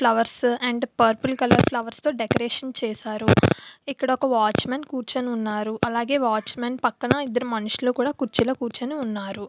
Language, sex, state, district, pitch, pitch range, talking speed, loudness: Telugu, female, Andhra Pradesh, Visakhapatnam, 245 Hz, 225-260 Hz, 135 wpm, -23 LUFS